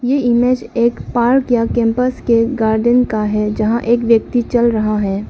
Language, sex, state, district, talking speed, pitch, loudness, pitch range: Hindi, female, Arunachal Pradesh, Lower Dibang Valley, 180 wpm, 235 Hz, -15 LUFS, 220-245 Hz